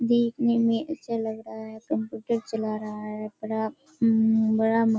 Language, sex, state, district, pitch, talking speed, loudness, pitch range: Hindi, female, Bihar, Kishanganj, 220 Hz, 170 wpm, -26 LUFS, 220-230 Hz